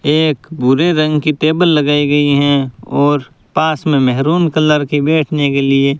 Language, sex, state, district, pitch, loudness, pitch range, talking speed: Hindi, male, Rajasthan, Bikaner, 145 Hz, -13 LUFS, 140-155 Hz, 180 wpm